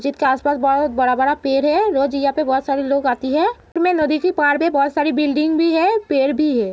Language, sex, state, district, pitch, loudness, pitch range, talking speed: Hindi, female, Uttar Pradesh, Etah, 290 Hz, -17 LUFS, 275-310 Hz, 185 wpm